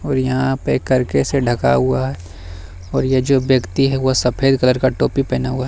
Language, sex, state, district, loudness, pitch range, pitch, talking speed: Hindi, male, Bihar, Bhagalpur, -17 LUFS, 90-135 Hz, 130 Hz, 210 wpm